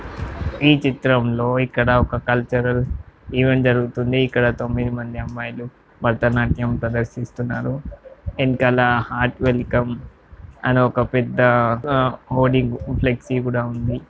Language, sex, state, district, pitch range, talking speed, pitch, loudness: Telugu, male, Telangana, Karimnagar, 120-125 Hz, 100 wpm, 120 Hz, -20 LUFS